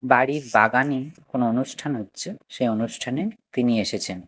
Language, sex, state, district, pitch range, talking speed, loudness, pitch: Bengali, male, Odisha, Nuapada, 115-135 Hz, 125 wpm, -24 LUFS, 125 Hz